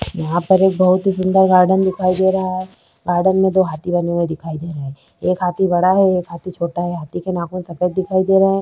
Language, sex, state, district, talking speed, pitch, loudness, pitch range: Hindi, female, Chhattisgarh, Korba, 255 wpm, 185 Hz, -17 LUFS, 175-190 Hz